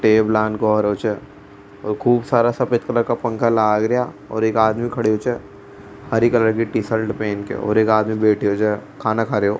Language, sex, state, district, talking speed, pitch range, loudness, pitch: Rajasthani, male, Rajasthan, Churu, 170 wpm, 105-115 Hz, -19 LUFS, 110 Hz